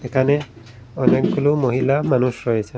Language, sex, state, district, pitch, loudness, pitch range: Bengali, male, Assam, Hailakandi, 130 Hz, -19 LUFS, 120-140 Hz